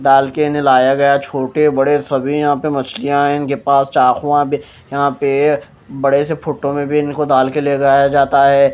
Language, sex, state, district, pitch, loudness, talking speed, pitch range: Hindi, male, Maharashtra, Mumbai Suburban, 140 Hz, -14 LUFS, 205 wpm, 135-145 Hz